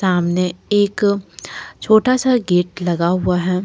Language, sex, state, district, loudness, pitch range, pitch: Hindi, female, Jharkhand, Deoghar, -17 LUFS, 180-205 Hz, 185 Hz